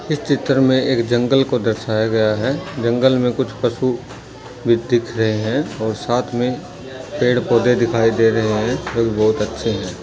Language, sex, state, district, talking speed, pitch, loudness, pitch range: Hindi, male, Bihar, Jamui, 185 wpm, 120 Hz, -18 LUFS, 110-125 Hz